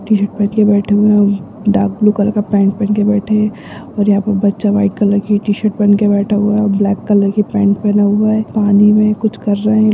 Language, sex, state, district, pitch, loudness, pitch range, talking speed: Hindi, female, Uttarakhand, Tehri Garhwal, 205 Hz, -13 LUFS, 205-210 Hz, 265 wpm